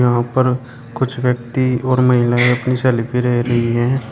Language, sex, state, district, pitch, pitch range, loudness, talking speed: Hindi, male, Uttar Pradesh, Shamli, 125 Hz, 120-130 Hz, -16 LUFS, 160 wpm